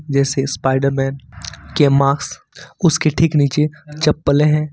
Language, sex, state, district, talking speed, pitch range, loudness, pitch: Hindi, male, Jharkhand, Ranchi, 115 wpm, 135-150 Hz, -17 LUFS, 140 Hz